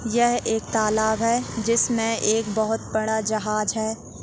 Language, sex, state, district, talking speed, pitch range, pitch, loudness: Hindi, female, Chhattisgarh, Jashpur, 155 wpm, 220-230 Hz, 220 Hz, -23 LUFS